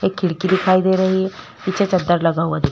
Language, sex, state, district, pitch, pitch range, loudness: Hindi, female, Chhattisgarh, Korba, 185 Hz, 165-190 Hz, -18 LUFS